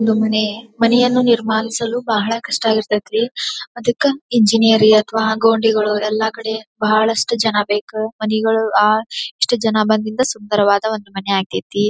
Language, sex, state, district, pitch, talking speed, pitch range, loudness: Kannada, female, Karnataka, Dharwad, 220 Hz, 130 wpm, 215-230 Hz, -16 LUFS